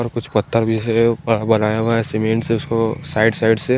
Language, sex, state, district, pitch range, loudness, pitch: Hindi, male, Chandigarh, Chandigarh, 110-115 Hz, -18 LUFS, 115 Hz